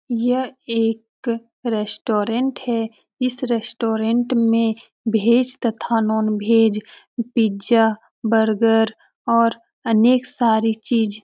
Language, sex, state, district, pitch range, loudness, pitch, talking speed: Hindi, female, Uttar Pradesh, Etah, 220-235 Hz, -20 LUFS, 230 Hz, 95 wpm